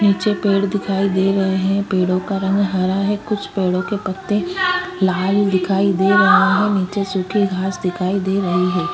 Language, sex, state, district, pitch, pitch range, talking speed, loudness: Hindi, female, Maharashtra, Aurangabad, 195 Hz, 185-200 Hz, 180 wpm, -18 LUFS